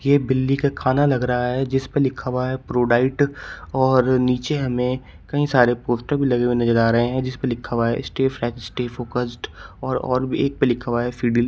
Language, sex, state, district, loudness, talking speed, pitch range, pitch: Hindi, male, Uttar Pradesh, Shamli, -21 LUFS, 230 wpm, 120-135 Hz, 125 Hz